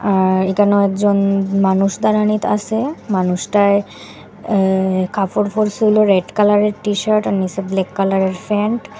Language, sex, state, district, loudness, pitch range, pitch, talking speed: Bengali, female, Assam, Hailakandi, -16 LUFS, 190-210 Hz, 200 Hz, 125 wpm